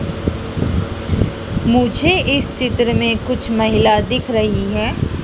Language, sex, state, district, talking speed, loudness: Hindi, female, Madhya Pradesh, Dhar, 105 wpm, -17 LUFS